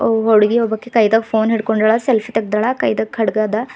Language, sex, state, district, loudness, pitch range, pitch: Kannada, female, Karnataka, Bidar, -16 LUFS, 220-230 Hz, 220 Hz